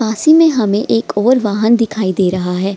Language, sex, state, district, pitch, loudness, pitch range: Hindi, female, Bihar, Gaya, 210 Hz, -13 LUFS, 190-230 Hz